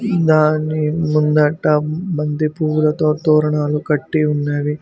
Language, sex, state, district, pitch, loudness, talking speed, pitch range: Telugu, male, Telangana, Mahabubabad, 155 Hz, -17 LUFS, 85 wpm, 150-155 Hz